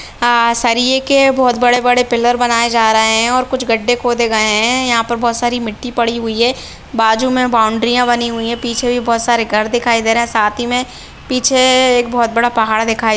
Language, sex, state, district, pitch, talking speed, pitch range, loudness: Hindi, female, Jharkhand, Sahebganj, 235 Hz, 220 wpm, 230-245 Hz, -13 LUFS